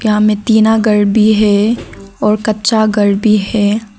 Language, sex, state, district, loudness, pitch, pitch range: Hindi, female, Arunachal Pradesh, Lower Dibang Valley, -12 LUFS, 215 Hz, 205-220 Hz